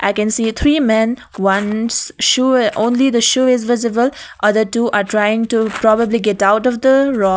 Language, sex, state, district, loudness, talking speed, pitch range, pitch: English, female, Sikkim, Gangtok, -15 LUFS, 195 wpm, 215-250 Hz, 230 Hz